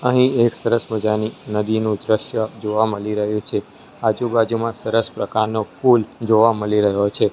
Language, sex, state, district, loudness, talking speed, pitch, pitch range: Gujarati, male, Gujarat, Gandhinagar, -19 LUFS, 145 wpm, 110 Hz, 105-115 Hz